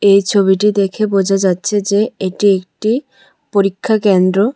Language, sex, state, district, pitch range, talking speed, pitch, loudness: Bengali, female, Tripura, West Tripura, 195-215 Hz, 120 wpm, 200 Hz, -14 LUFS